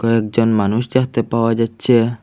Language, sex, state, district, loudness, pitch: Bengali, male, Assam, Hailakandi, -17 LUFS, 115 Hz